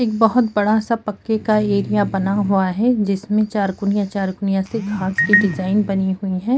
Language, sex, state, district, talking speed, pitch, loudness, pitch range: Hindi, female, Uttarakhand, Tehri Garhwal, 210 wpm, 205 Hz, -18 LUFS, 195-215 Hz